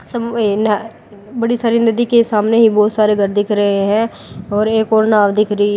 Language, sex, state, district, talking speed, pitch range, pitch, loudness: Hindi, female, Uttar Pradesh, Lalitpur, 185 wpm, 205-230 Hz, 215 Hz, -14 LUFS